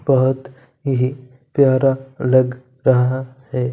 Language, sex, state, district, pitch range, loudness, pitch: Hindi, male, Punjab, Kapurthala, 130-135 Hz, -18 LUFS, 130 Hz